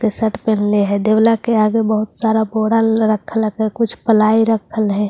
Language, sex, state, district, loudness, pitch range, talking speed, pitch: Hindi, female, Bihar, Katihar, -16 LUFS, 215-225 Hz, 200 wpm, 220 Hz